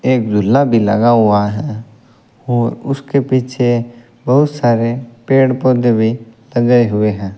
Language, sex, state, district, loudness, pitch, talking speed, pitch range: Hindi, male, Rajasthan, Bikaner, -14 LUFS, 120 Hz, 140 wpm, 115-130 Hz